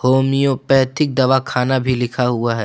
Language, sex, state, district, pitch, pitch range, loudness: Hindi, male, Jharkhand, Palamu, 130 Hz, 125-135 Hz, -17 LUFS